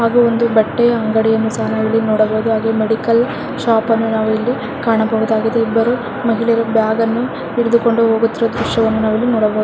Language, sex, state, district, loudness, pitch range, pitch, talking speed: Kannada, female, Karnataka, Dharwad, -15 LUFS, 220-235 Hz, 225 Hz, 125 wpm